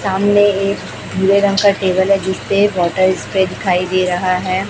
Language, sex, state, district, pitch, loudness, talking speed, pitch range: Hindi, female, Chhattisgarh, Raipur, 190 Hz, -15 LUFS, 190 wpm, 185-200 Hz